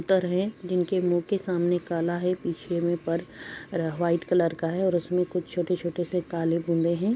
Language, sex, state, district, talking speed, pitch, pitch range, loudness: Hindi, female, Uttar Pradesh, Budaun, 185 wpm, 175 Hz, 170-180 Hz, -27 LUFS